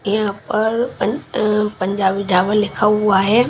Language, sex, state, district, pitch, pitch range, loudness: Hindi, female, Chhattisgarh, Raipur, 210 Hz, 195-215 Hz, -17 LUFS